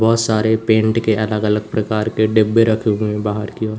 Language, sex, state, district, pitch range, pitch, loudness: Hindi, male, Uttar Pradesh, Lalitpur, 105-110 Hz, 110 Hz, -17 LUFS